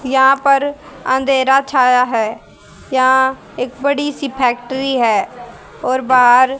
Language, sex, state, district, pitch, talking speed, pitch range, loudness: Hindi, female, Haryana, Rohtak, 260 Hz, 120 wpm, 250-275 Hz, -14 LUFS